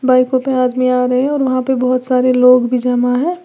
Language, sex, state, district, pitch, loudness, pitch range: Hindi, female, Uttar Pradesh, Lalitpur, 255 Hz, -14 LUFS, 250-260 Hz